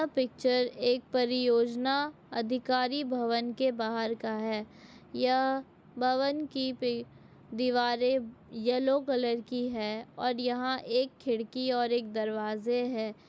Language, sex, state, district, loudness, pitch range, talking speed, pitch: Hindi, female, Chhattisgarh, Bastar, -31 LUFS, 230-255 Hz, 110 wpm, 245 Hz